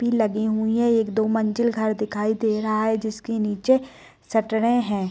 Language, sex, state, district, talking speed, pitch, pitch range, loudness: Hindi, female, Bihar, Darbhanga, 175 wpm, 220 Hz, 215-230 Hz, -22 LUFS